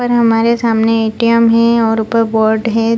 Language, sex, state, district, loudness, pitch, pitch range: Hindi, female, Bihar, Purnia, -12 LUFS, 225 Hz, 225-230 Hz